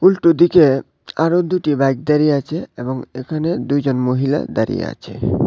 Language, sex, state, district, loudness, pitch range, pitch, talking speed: Bengali, male, Tripura, West Tripura, -17 LUFS, 135-170 Hz, 150 Hz, 145 wpm